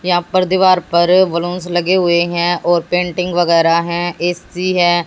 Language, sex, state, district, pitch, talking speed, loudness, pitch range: Hindi, female, Haryana, Jhajjar, 175 Hz, 165 wpm, -14 LUFS, 170-180 Hz